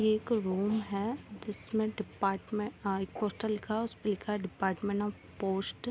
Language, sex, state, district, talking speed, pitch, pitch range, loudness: Hindi, female, Jharkhand, Jamtara, 175 wpm, 210 Hz, 195-215 Hz, -34 LUFS